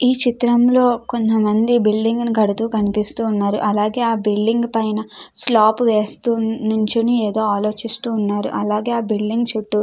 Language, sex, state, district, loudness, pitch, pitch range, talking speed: Telugu, female, Andhra Pradesh, Krishna, -18 LUFS, 220 Hz, 215-235 Hz, 130 wpm